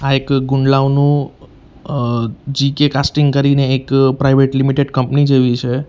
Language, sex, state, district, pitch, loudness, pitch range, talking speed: Gujarati, male, Gujarat, Valsad, 135 Hz, -14 LUFS, 135-140 Hz, 120 wpm